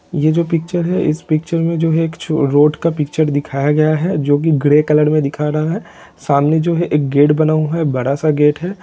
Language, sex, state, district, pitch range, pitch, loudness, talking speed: Hindi, male, Jharkhand, Sahebganj, 150-165 Hz, 155 Hz, -15 LUFS, 260 wpm